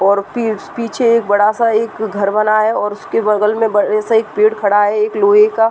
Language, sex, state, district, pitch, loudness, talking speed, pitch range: Hindi, female, Uttar Pradesh, Deoria, 215 Hz, -14 LUFS, 240 wpm, 205-225 Hz